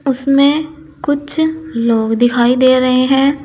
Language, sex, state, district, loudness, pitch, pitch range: Hindi, female, Uttar Pradesh, Saharanpur, -13 LUFS, 270 Hz, 250-290 Hz